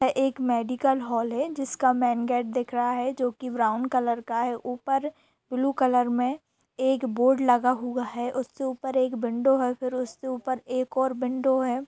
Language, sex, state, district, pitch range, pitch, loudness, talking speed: Hindi, female, Bihar, Sitamarhi, 245-265 Hz, 255 Hz, -26 LUFS, 185 wpm